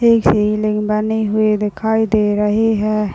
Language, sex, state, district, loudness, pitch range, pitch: Hindi, female, Chhattisgarh, Raigarh, -16 LUFS, 210-220 Hz, 215 Hz